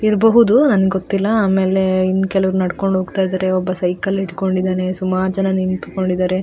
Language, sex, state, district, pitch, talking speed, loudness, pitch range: Kannada, female, Karnataka, Dakshina Kannada, 190 Hz, 160 wpm, -17 LUFS, 185-195 Hz